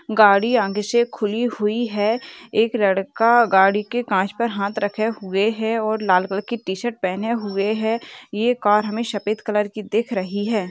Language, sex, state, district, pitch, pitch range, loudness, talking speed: Hindi, female, Uttar Pradesh, Hamirpur, 215 Hz, 200-230 Hz, -20 LUFS, 200 wpm